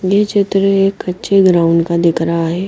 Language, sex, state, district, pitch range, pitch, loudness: Hindi, female, Haryana, Jhajjar, 170-195 Hz, 185 Hz, -13 LUFS